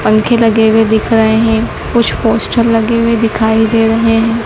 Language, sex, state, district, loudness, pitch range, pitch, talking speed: Hindi, female, Madhya Pradesh, Dhar, -11 LUFS, 220-230 Hz, 225 Hz, 190 wpm